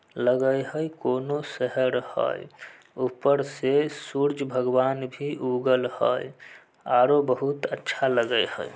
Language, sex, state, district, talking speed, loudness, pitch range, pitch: Maithili, male, Bihar, Samastipur, 110 wpm, -25 LUFS, 125-145 Hz, 135 Hz